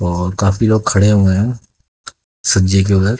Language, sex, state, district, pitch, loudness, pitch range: Hindi, male, Haryana, Jhajjar, 100 Hz, -14 LUFS, 95-105 Hz